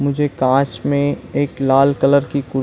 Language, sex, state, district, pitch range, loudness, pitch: Hindi, male, Chhattisgarh, Bilaspur, 135-140 Hz, -17 LUFS, 140 Hz